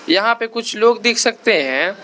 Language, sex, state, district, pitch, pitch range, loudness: Hindi, male, Arunachal Pradesh, Lower Dibang Valley, 235 Hz, 230-310 Hz, -16 LUFS